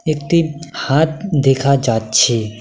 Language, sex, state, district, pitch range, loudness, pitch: Bengali, male, West Bengal, Cooch Behar, 120-160 Hz, -15 LUFS, 140 Hz